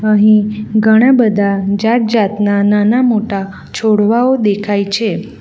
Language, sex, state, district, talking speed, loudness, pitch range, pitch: Gujarati, female, Gujarat, Valsad, 110 wpm, -12 LUFS, 205-225 Hz, 215 Hz